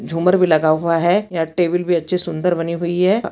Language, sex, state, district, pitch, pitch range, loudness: Hindi, female, Chhattisgarh, Bastar, 175 Hz, 165-180 Hz, -17 LUFS